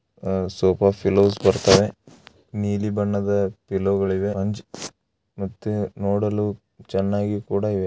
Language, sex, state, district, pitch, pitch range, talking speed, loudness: Kannada, male, Karnataka, Raichur, 100 Hz, 95-105 Hz, 90 wpm, -22 LUFS